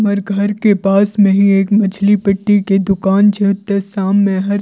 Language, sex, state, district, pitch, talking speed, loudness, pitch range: Maithili, female, Bihar, Purnia, 200 Hz, 220 wpm, -13 LUFS, 195-205 Hz